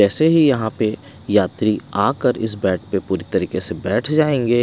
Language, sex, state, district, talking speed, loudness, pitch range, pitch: Hindi, male, Odisha, Malkangiri, 180 wpm, -19 LUFS, 100-135 Hz, 110 Hz